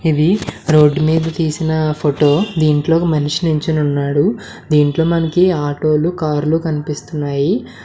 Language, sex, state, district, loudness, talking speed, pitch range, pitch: Telugu, male, Andhra Pradesh, Srikakulam, -15 LUFS, 120 wpm, 150-160 Hz, 155 Hz